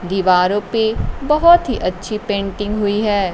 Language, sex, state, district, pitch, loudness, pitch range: Hindi, female, Bihar, Kaimur, 205 Hz, -16 LUFS, 195-225 Hz